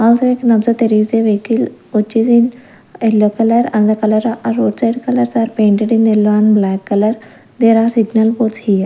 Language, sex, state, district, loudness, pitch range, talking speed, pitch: English, female, Punjab, Fazilka, -13 LUFS, 215-235 Hz, 190 wpm, 225 Hz